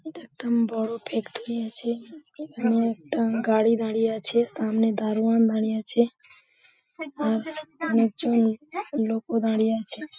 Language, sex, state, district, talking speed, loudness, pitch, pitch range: Bengali, female, West Bengal, Paschim Medinipur, 120 wpm, -25 LUFS, 230 Hz, 220-235 Hz